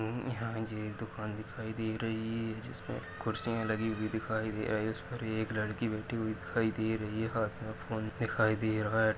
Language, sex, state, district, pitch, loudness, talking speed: Hindi, male, Maharashtra, Sindhudurg, 110 Hz, -35 LUFS, 220 wpm